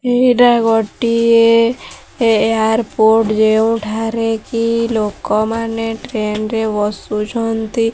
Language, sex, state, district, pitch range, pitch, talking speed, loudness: Odia, female, Odisha, Sambalpur, 220-230 Hz, 225 Hz, 70 wpm, -15 LUFS